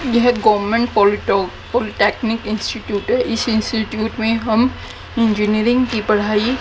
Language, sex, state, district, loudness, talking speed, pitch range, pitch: Hindi, female, Haryana, Jhajjar, -17 LUFS, 120 wpm, 215-235 Hz, 225 Hz